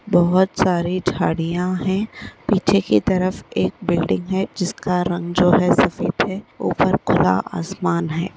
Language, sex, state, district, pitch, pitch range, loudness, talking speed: Bhojpuri, male, Uttar Pradesh, Gorakhpur, 180 Hz, 175-190 Hz, -19 LUFS, 145 wpm